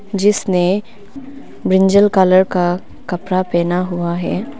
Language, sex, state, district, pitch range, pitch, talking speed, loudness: Hindi, female, Arunachal Pradesh, Papum Pare, 180-205 Hz, 190 Hz, 105 wpm, -16 LUFS